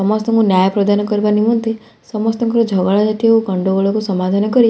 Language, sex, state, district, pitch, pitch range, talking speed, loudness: Odia, female, Odisha, Khordha, 210 Hz, 195-225 Hz, 140 wpm, -15 LUFS